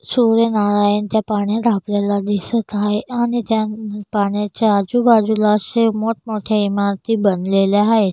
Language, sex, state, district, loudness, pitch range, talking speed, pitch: Marathi, female, Maharashtra, Solapur, -17 LUFS, 205-225 Hz, 120 wpm, 210 Hz